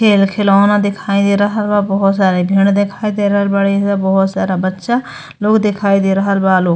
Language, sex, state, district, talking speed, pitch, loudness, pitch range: Bhojpuri, female, Uttar Pradesh, Gorakhpur, 205 wpm, 200 Hz, -14 LUFS, 195-205 Hz